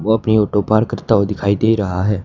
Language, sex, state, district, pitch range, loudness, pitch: Hindi, male, Haryana, Charkhi Dadri, 100-110 Hz, -16 LUFS, 105 Hz